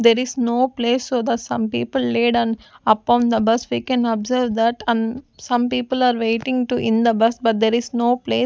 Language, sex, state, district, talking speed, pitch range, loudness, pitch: English, female, Punjab, Kapurthala, 220 wpm, 225-250 Hz, -19 LUFS, 235 Hz